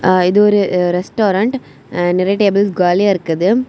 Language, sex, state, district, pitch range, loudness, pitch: Tamil, female, Tamil Nadu, Kanyakumari, 180-205 Hz, -14 LUFS, 195 Hz